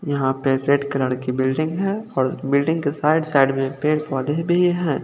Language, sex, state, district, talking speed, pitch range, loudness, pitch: Hindi, male, Chandigarh, Chandigarh, 200 wpm, 135-160 Hz, -20 LUFS, 140 Hz